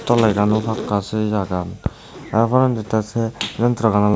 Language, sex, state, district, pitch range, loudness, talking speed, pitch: Chakma, male, Tripura, Dhalai, 105-115 Hz, -20 LUFS, 145 wpm, 110 Hz